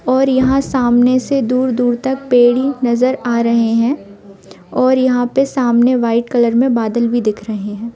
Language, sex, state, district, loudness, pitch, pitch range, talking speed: Hindi, female, Bihar, Sitamarhi, -14 LUFS, 245 Hz, 235-260 Hz, 175 wpm